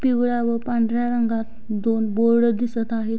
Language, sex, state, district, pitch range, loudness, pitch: Marathi, female, Maharashtra, Sindhudurg, 225-240 Hz, -22 LUFS, 230 Hz